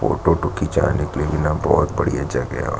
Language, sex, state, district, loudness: Hindi, male, Chhattisgarh, Jashpur, -20 LUFS